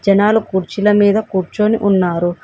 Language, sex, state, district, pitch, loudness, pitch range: Telugu, female, Telangana, Komaram Bheem, 200 Hz, -15 LUFS, 185-210 Hz